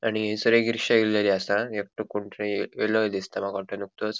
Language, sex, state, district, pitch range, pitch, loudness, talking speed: Konkani, male, Goa, North and South Goa, 100-110 Hz, 105 Hz, -25 LUFS, 200 wpm